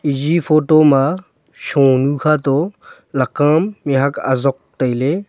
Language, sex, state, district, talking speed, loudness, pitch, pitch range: Wancho, male, Arunachal Pradesh, Longding, 115 wpm, -16 LUFS, 145 Hz, 135-155 Hz